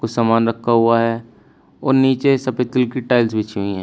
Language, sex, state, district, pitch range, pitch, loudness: Hindi, male, Uttar Pradesh, Shamli, 115-130 Hz, 115 Hz, -17 LUFS